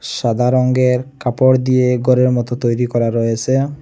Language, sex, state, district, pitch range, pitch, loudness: Bengali, male, Assam, Hailakandi, 120-130 Hz, 125 Hz, -15 LUFS